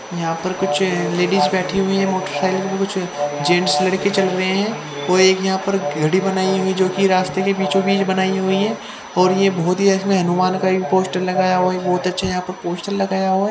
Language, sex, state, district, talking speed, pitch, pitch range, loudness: Hindi, female, Haryana, Charkhi Dadri, 215 wpm, 185 Hz, 185-190 Hz, -18 LUFS